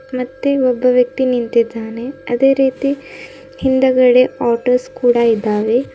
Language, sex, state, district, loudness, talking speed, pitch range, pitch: Kannada, female, Karnataka, Bidar, -15 LUFS, 100 wpm, 235-265 Hz, 250 Hz